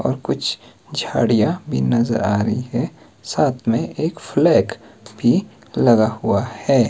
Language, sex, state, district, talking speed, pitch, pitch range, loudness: Hindi, male, Himachal Pradesh, Shimla, 140 wpm, 110 Hz, 105-120 Hz, -19 LUFS